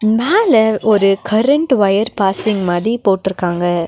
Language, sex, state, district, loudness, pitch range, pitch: Tamil, female, Tamil Nadu, Nilgiris, -14 LUFS, 190-225 Hz, 210 Hz